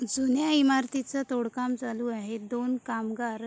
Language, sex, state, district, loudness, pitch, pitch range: Marathi, female, Maharashtra, Sindhudurg, -29 LUFS, 245 Hz, 235-265 Hz